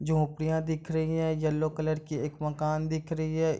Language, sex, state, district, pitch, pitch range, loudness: Hindi, male, Bihar, East Champaran, 155 Hz, 155-160 Hz, -30 LUFS